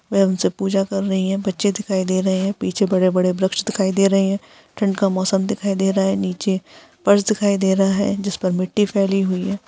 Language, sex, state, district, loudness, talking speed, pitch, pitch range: Hindi, female, Bihar, Gaya, -19 LUFS, 225 wpm, 195 Hz, 190-200 Hz